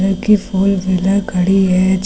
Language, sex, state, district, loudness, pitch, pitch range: Hindi, female, Uttar Pradesh, Lucknow, -14 LUFS, 190 Hz, 190-195 Hz